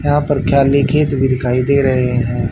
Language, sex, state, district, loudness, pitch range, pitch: Hindi, male, Haryana, Rohtak, -14 LUFS, 125-140 Hz, 135 Hz